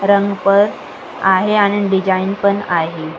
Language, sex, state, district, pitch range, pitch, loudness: Marathi, female, Maharashtra, Sindhudurg, 190-200 Hz, 200 Hz, -15 LUFS